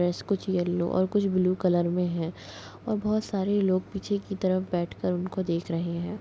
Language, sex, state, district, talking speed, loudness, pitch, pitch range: Hindi, female, Chhattisgarh, Kabirdham, 215 wpm, -28 LUFS, 185 Hz, 175-195 Hz